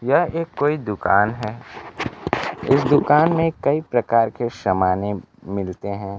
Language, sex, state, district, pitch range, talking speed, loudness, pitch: Hindi, male, Bihar, Kaimur, 100-145 Hz, 135 wpm, -20 LUFS, 115 Hz